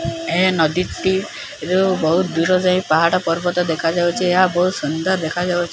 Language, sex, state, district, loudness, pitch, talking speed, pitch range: Odia, male, Odisha, Khordha, -18 LUFS, 175 Hz, 145 wpm, 165-185 Hz